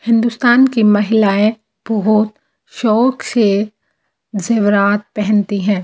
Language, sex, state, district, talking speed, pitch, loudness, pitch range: Hindi, female, Delhi, New Delhi, 95 wpm, 215 Hz, -14 LUFS, 205-230 Hz